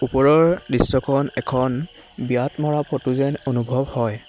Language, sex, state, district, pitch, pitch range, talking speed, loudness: Assamese, male, Assam, Hailakandi, 135 Hz, 130-145 Hz, 125 wpm, -20 LUFS